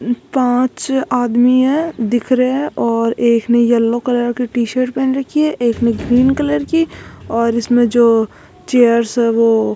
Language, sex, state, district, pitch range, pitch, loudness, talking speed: Hindi, female, Rajasthan, Jaipur, 235-260 Hz, 245 Hz, -15 LUFS, 180 wpm